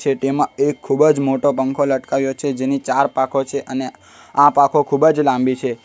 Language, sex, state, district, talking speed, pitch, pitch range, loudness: Gujarati, male, Gujarat, Valsad, 195 wpm, 140 Hz, 135-145 Hz, -17 LUFS